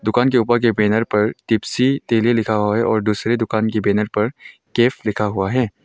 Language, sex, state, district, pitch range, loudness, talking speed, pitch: Hindi, male, Arunachal Pradesh, Longding, 105-120 Hz, -18 LUFS, 215 wpm, 110 Hz